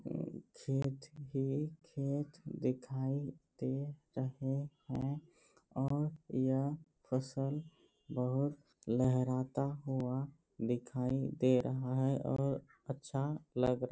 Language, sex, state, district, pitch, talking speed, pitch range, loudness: Hindi, male, Bihar, Bhagalpur, 135 Hz, 100 wpm, 130-145 Hz, -38 LUFS